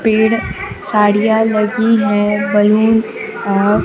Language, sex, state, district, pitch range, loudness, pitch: Hindi, female, Bihar, Kaimur, 205-220 Hz, -14 LUFS, 215 Hz